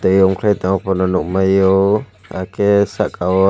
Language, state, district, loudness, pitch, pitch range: Kokborok, Tripura, West Tripura, -15 LUFS, 95 Hz, 95-100 Hz